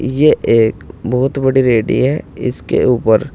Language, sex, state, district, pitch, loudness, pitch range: Hindi, male, Uttar Pradesh, Saharanpur, 125 Hz, -14 LUFS, 110-135 Hz